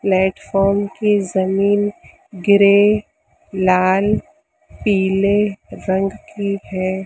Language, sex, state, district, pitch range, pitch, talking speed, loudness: Hindi, female, Maharashtra, Mumbai Suburban, 190-205 Hz, 200 Hz, 75 wpm, -17 LUFS